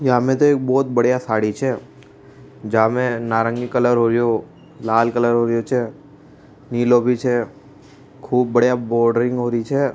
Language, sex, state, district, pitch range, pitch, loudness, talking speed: Rajasthani, male, Rajasthan, Churu, 115-135 Hz, 120 Hz, -18 LUFS, 140 wpm